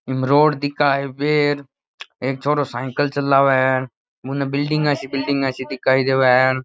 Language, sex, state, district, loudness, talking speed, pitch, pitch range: Rajasthani, male, Rajasthan, Nagaur, -19 LUFS, 160 wpm, 135 Hz, 130-145 Hz